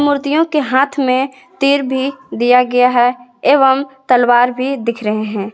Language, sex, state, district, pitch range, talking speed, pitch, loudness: Hindi, female, Jharkhand, Garhwa, 245-275 Hz, 160 wpm, 260 Hz, -14 LUFS